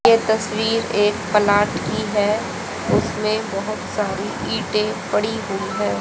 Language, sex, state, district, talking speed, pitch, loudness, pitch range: Hindi, female, Haryana, Jhajjar, 130 wpm, 210 Hz, -20 LUFS, 200-215 Hz